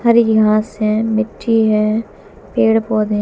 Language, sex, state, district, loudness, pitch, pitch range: Hindi, female, Haryana, Jhajjar, -15 LUFS, 220 Hz, 215-225 Hz